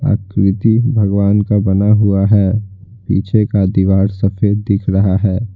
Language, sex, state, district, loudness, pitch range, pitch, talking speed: Hindi, male, Bihar, Patna, -14 LUFS, 95-105 Hz, 100 Hz, 140 wpm